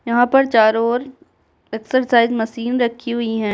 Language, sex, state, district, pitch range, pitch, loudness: Hindi, female, Bihar, Kishanganj, 225-250 Hz, 235 Hz, -17 LUFS